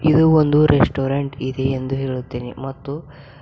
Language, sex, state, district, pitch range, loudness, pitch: Kannada, female, Karnataka, Bidar, 130-145 Hz, -19 LUFS, 135 Hz